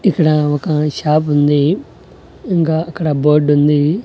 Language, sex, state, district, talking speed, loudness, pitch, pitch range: Telugu, male, Andhra Pradesh, Annamaya, 120 wpm, -14 LUFS, 150 Hz, 145-165 Hz